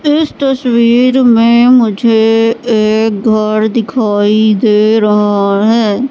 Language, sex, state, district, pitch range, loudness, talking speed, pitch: Hindi, female, Madhya Pradesh, Katni, 215-240 Hz, -10 LUFS, 100 wpm, 225 Hz